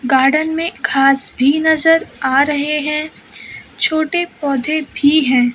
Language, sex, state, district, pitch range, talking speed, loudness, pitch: Hindi, female, Maharashtra, Mumbai Suburban, 270-315 Hz, 130 wpm, -15 LUFS, 295 Hz